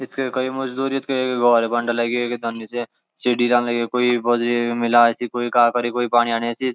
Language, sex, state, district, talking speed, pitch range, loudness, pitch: Garhwali, male, Uttarakhand, Uttarkashi, 225 wpm, 120-125 Hz, -20 LUFS, 120 Hz